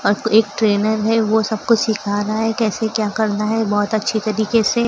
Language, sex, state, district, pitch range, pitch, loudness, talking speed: Hindi, female, Maharashtra, Gondia, 210-225 Hz, 220 Hz, -18 LUFS, 210 wpm